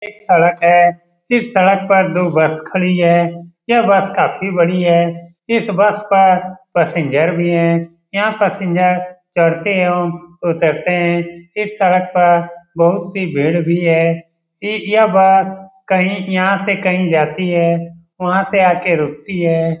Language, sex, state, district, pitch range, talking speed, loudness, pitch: Hindi, male, Bihar, Lakhisarai, 170-195 Hz, 150 wpm, -14 LUFS, 180 Hz